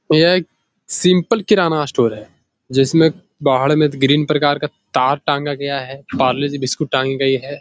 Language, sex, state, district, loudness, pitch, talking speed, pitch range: Hindi, male, Bihar, Jahanabad, -17 LUFS, 145 Hz, 165 wpm, 135-155 Hz